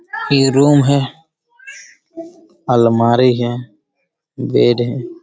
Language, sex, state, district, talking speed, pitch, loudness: Hindi, male, Bihar, Jamui, 90 wpm, 135 Hz, -14 LUFS